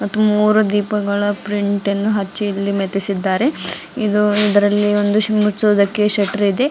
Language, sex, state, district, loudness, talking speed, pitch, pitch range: Kannada, female, Karnataka, Bidar, -16 LUFS, 105 wpm, 205 Hz, 200-210 Hz